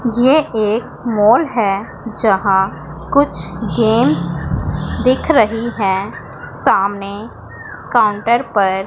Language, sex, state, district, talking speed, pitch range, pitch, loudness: Hindi, female, Punjab, Pathankot, 90 wpm, 190-230 Hz, 210 Hz, -16 LUFS